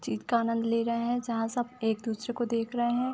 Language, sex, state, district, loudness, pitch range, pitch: Hindi, female, Uttar Pradesh, Budaun, -30 LUFS, 230-240 Hz, 235 Hz